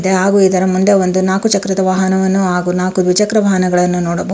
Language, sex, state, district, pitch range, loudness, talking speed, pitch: Kannada, female, Karnataka, Bangalore, 185-195 Hz, -13 LUFS, 180 wpm, 190 Hz